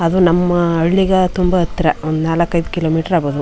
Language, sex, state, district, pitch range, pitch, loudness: Kannada, female, Karnataka, Chamarajanagar, 160-180 Hz, 170 Hz, -15 LUFS